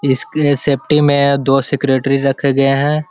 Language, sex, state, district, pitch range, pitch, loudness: Hindi, male, Bihar, Jahanabad, 135-145 Hz, 140 Hz, -14 LUFS